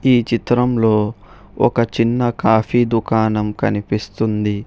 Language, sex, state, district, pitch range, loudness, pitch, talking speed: Telugu, male, Telangana, Hyderabad, 105-120 Hz, -17 LUFS, 110 Hz, 90 wpm